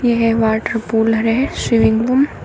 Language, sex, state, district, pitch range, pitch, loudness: Hindi, female, Uttar Pradesh, Shamli, 225-240 Hz, 225 Hz, -16 LUFS